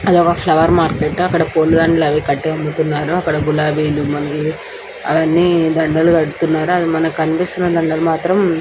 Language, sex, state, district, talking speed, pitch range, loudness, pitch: Telugu, male, Andhra Pradesh, Anantapur, 90 wpm, 155-170 Hz, -15 LUFS, 160 Hz